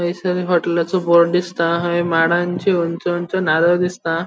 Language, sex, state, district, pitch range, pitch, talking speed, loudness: Konkani, male, Goa, North and South Goa, 170-180 Hz, 175 Hz, 140 wpm, -17 LUFS